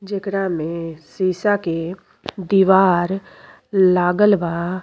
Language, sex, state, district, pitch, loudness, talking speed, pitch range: Bhojpuri, female, Uttar Pradesh, Deoria, 185 Hz, -18 LUFS, 85 wpm, 170-195 Hz